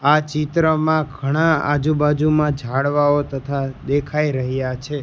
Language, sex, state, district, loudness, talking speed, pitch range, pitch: Gujarati, male, Gujarat, Gandhinagar, -19 LUFS, 120 wpm, 135-150 Hz, 145 Hz